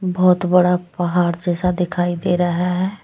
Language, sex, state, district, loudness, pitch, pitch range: Hindi, female, Jharkhand, Deoghar, -18 LUFS, 180 Hz, 175-180 Hz